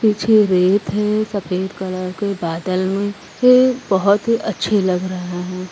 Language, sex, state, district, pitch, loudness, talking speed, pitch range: Hindi, female, Uttar Pradesh, Varanasi, 195 Hz, -18 LUFS, 155 wpm, 185-210 Hz